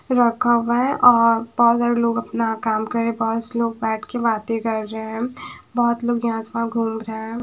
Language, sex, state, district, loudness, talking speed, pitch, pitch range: Hindi, female, Haryana, Charkhi Dadri, -20 LUFS, 195 wpm, 230 Hz, 225-240 Hz